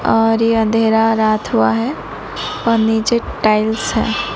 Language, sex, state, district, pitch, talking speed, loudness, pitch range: Hindi, female, Odisha, Nuapada, 220 Hz, 140 wpm, -15 LUFS, 215-225 Hz